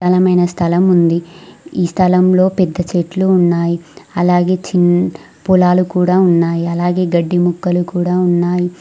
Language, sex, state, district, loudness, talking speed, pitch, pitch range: Telugu, female, Telangana, Mahabubabad, -14 LUFS, 115 wpm, 180 Hz, 175-180 Hz